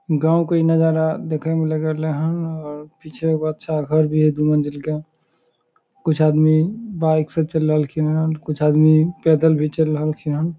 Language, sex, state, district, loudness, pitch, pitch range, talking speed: Maithili, male, Bihar, Samastipur, -19 LUFS, 155 Hz, 155-160 Hz, 185 wpm